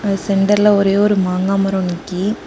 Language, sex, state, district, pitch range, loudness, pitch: Tamil, female, Tamil Nadu, Kanyakumari, 190-205 Hz, -15 LUFS, 195 Hz